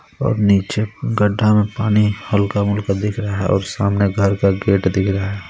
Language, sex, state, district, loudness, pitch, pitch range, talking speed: Hindi, male, Jharkhand, Garhwa, -17 LUFS, 100 Hz, 100-105 Hz, 195 wpm